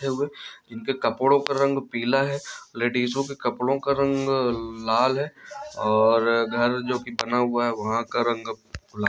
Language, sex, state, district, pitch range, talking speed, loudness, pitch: Hindi, male, Chhattisgarh, Bilaspur, 115-135 Hz, 170 wpm, -24 LUFS, 125 Hz